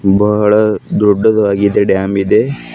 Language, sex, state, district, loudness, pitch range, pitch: Kannada, male, Karnataka, Bidar, -12 LUFS, 100-105 Hz, 105 Hz